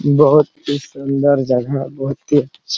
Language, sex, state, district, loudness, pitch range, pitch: Hindi, male, Jharkhand, Sahebganj, -16 LUFS, 135-145 Hz, 140 Hz